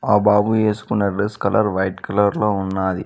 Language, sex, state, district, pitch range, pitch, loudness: Telugu, male, Telangana, Mahabubabad, 95-105 Hz, 105 Hz, -19 LUFS